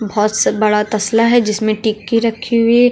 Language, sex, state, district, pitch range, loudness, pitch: Hindi, female, Uttar Pradesh, Lucknow, 215-230 Hz, -14 LUFS, 220 Hz